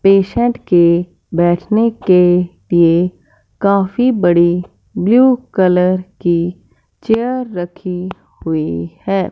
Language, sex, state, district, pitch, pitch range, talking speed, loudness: Hindi, female, Punjab, Fazilka, 185 Hz, 175-215 Hz, 90 wpm, -14 LUFS